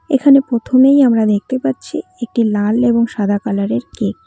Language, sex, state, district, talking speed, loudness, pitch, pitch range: Bengali, female, West Bengal, Cooch Behar, 170 wpm, -14 LUFS, 230 Hz, 205-260 Hz